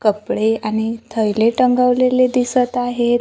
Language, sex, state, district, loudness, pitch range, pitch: Marathi, female, Maharashtra, Gondia, -17 LUFS, 220-250 Hz, 240 Hz